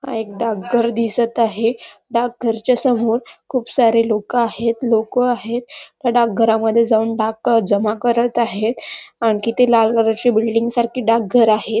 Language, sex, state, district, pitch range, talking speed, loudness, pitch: Marathi, female, Maharashtra, Nagpur, 225-240 Hz, 155 wpm, -17 LUFS, 230 Hz